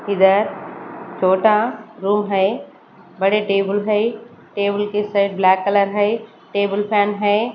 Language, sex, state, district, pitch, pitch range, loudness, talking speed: Hindi, female, Maharashtra, Mumbai Suburban, 205 Hz, 195-210 Hz, -18 LUFS, 125 wpm